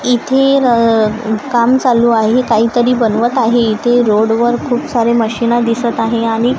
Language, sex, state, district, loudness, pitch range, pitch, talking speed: Marathi, female, Maharashtra, Gondia, -12 LUFS, 225-245 Hz, 235 Hz, 145 wpm